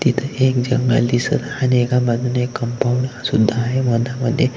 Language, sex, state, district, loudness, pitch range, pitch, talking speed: Marathi, male, Maharashtra, Solapur, -18 LUFS, 120-130 Hz, 125 Hz, 145 wpm